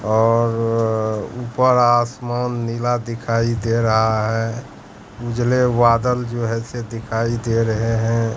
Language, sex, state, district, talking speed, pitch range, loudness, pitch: Hindi, male, Bihar, Katihar, 120 wpm, 115-120 Hz, -19 LUFS, 115 Hz